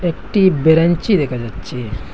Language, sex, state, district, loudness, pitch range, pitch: Bengali, male, Assam, Hailakandi, -16 LUFS, 120-175 Hz, 160 Hz